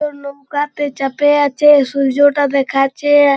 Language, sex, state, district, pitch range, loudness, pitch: Bengali, male, West Bengal, Purulia, 275-290 Hz, -14 LUFS, 285 Hz